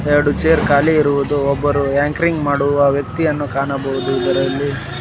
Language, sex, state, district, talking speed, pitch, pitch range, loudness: Kannada, male, Karnataka, Koppal, 120 wpm, 145 Hz, 140-145 Hz, -16 LUFS